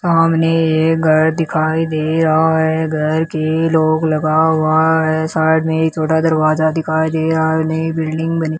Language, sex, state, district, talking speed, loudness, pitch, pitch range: Hindi, male, Rajasthan, Bikaner, 180 wpm, -15 LUFS, 160 Hz, 155-160 Hz